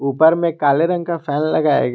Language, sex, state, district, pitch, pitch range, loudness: Hindi, male, Jharkhand, Garhwa, 155 Hz, 145-170 Hz, -17 LUFS